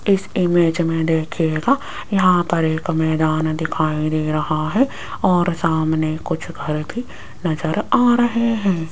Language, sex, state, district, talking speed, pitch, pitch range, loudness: Hindi, female, Rajasthan, Jaipur, 140 wpm, 165 Hz, 155-190 Hz, -19 LUFS